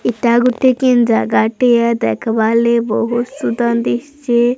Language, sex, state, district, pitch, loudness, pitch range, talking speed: Odia, female, Odisha, Sambalpur, 235 Hz, -14 LUFS, 230-245 Hz, 145 wpm